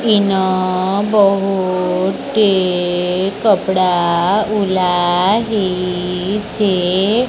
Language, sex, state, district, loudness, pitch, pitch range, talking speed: Odia, female, Odisha, Sambalpur, -15 LUFS, 190 Hz, 180-205 Hz, 40 wpm